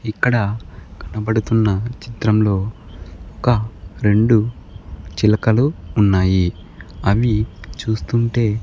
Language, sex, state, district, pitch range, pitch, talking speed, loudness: Telugu, male, Andhra Pradesh, Sri Satya Sai, 95-110 Hz, 105 Hz, 60 wpm, -18 LUFS